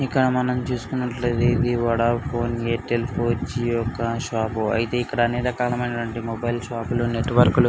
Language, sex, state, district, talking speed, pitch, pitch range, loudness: Telugu, male, Andhra Pradesh, Anantapur, 130 wpm, 120 Hz, 115-125 Hz, -23 LUFS